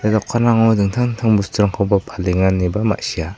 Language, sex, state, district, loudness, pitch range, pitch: Garo, male, Meghalaya, South Garo Hills, -17 LUFS, 95-110 Hz, 100 Hz